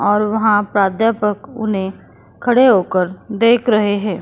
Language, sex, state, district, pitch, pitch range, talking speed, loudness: Hindi, female, Goa, North and South Goa, 210 Hz, 200-225 Hz, 130 wpm, -16 LUFS